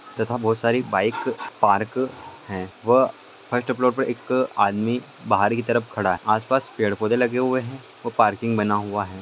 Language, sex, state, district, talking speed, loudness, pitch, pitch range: Hindi, male, Chhattisgarh, Raigarh, 190 wpm, -22 LUFS, 115 Hz, 105-125 Hz